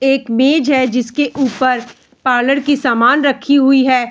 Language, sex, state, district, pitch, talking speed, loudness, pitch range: Hindi, female, Bihar, Bhagalpur, 265 Hz, 160 wpm, -13 LUFS, 250-280 Hz